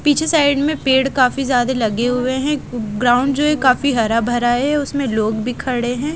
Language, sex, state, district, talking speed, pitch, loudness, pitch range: Hindi, female, Haryana, Jhajjar, 205 wpm, 255 Hz, -17 LUFS, 240-285 Hz